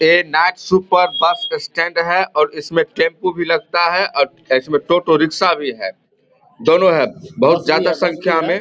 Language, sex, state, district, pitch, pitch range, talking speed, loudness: Hindi, male, Bihar, Vaishali, 175 Hz, 165-185 Hz, 165 wpm, -16 LUFS